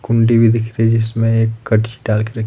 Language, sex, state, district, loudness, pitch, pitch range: Hindi, male, Himachal Pradesh, Shimla, -15 LUFS, 115 Hz, 110-115 Hz